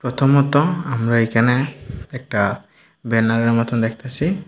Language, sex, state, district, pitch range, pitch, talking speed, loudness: Bengali, male, Tripura, Dhalai, 115-140 Hz, 125 Hz, 95 wpm, -18 LUFS